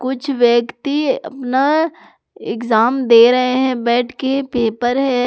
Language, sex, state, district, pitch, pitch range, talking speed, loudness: Hindi, female, Jharkhand, Palamu, 255 Hz, 240-270 Hz, 125 wpm, -16 LUFS